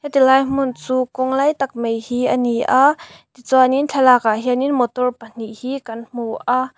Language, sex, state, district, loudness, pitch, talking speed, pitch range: Mizo, female, Mizoram, Aizawl, -17 LUFS, 255 Hz, 185 wpm, 235-270 Hz